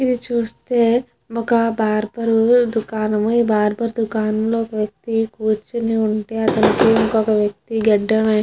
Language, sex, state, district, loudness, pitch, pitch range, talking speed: Telugu, female, Andhra Pradesh, Chittoor, -18 LUFS, 225 Hz, 215-230 Hz, 130 wpm